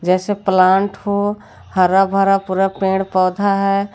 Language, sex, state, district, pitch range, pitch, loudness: Hindi, female, Jharkhand, Garhwa, 190-200 Hz, 195 Hz, -16 LUFS